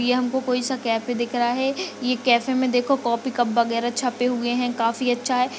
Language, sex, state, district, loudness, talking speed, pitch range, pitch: Hindi, female, Uttar Pradesh, Etah, -22 LUFS, 235 wpm, 240-255 Hz, 245 Hz